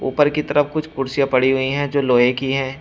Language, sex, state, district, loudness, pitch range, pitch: Hindi, male, Uttar Pradesh, Shamli, -18 LUFS, 130-145 Hz, 135 Hz